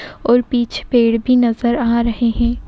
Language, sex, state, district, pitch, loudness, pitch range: Hindi, female, Uttar Pradesh, Etah, 235 Hz, -16 LUFS, 235-245 Hz